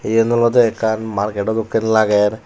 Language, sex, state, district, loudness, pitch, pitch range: Chakma, male, Tripura, Unakoti, -16 LUFS, 110 Hz, 105-115 Hz